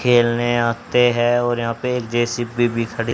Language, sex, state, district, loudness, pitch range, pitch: Hindi, male, Haryana, Charkhi Dadri, -19 LUFS, 115-120 Hz, 120 Hz